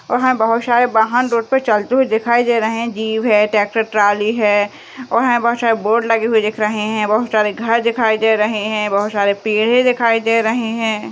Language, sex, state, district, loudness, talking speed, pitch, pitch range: Hindi, female, Rajasthan, Churu, -15 LUFS, 225 wpm, 225 Hz, 215-235 Hz